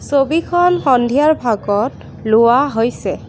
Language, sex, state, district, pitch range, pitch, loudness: Assamese, female, Assam, Kamrup Metropolitan, 230-305 Hz, 255 Hz, -15 LUFS